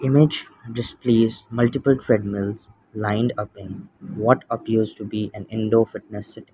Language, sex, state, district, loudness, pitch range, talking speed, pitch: English, male, Sikkim, Gangtok, -22 LUFS, 105-120 Hz, 140 wpm, 110 Hz